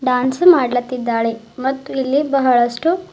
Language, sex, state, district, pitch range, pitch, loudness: Kannada, female, Karnataka, Bidar, 245-275 Hz, 260 Hz, -17 LUFS